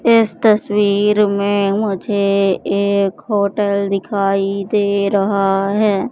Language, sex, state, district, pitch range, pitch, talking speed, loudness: Hindi, female, Madhya Pradesh, Katni, 195-210 Hz, 200 Hz, 100 wpm, -16 LUFS